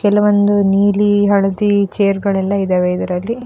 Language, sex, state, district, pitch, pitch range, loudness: Kannada, female, Karnataka, Dakshina Kannada, 200 Hz, 195-205 Hz, -14 LUFS